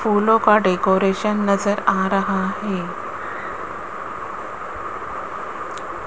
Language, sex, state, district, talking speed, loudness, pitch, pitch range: Hindi, female, Rajasthan, Jaipur, 70 wpm, -21 LUFS, 200 Hz, 195-215 Hz